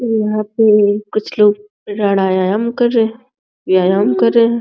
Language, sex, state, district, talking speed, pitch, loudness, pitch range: Hindi, female, Uttar Pradesh, Deoria, 145 wpm, 215 Hz, -14 LUFS, 205-230 Hz